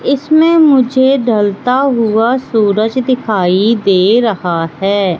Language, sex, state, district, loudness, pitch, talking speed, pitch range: Hindi, female, Madhya Pradesh, Katni, -11 LUFS, 230 Hz, 105 wpm, 200-260 Hz